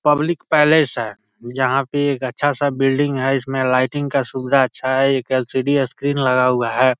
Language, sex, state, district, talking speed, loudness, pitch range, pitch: Hindi, male, Bihar, East Champaran, 205 wpm, -18 LUFS, 130-145 Hz, 135 Hz